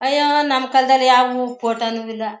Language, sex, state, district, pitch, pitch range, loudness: Kannada, female, Karnataka, Mysore, 250 Hz, 230-265 Hz, -17 LUFS